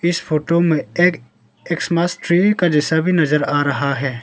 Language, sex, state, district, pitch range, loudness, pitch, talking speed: Hindi, male, Arunachal Pradesh, Lower Dibang Valley, 145-175 Hz, -17 LUFS, 160 Hz, 185 wpm